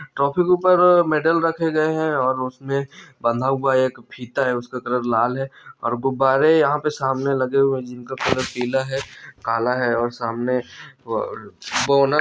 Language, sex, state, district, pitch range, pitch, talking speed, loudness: Hindi, male, Chhattisgarh, Bilaspur, 125-150 Hz, 135 Hz, 170 wpm, -20 LUFS